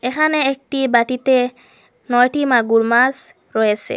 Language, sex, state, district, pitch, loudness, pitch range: Bengali, female, Assam, Hailakandi, 250 Hz, -16 LUFS, 240-270 Hz